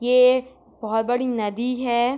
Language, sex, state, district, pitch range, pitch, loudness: Hindi, female, Jharkhand, Sahebganj, 235-250 Hz, 245 Hz, -21 LUFS